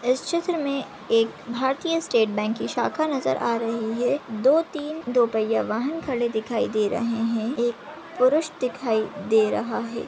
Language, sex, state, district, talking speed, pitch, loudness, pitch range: Hindi, male, Maharashtra, Chandrapur, 170 wpm, 240 Hz, -24 LUFS, 225-285 Hz